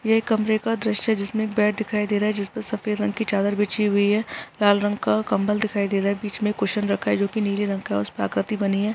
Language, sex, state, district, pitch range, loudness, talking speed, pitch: Hindi, female, Bihar, East Champaran, 200-215 Hz, -23 LUFS, 275 wpm, 210 Hz